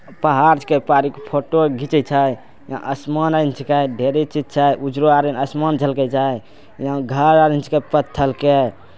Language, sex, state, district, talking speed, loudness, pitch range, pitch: Angika, male, Bihar, Bhagalpur, 135 wpm, -17 LUFS, 135-150 Hz, 145 Hz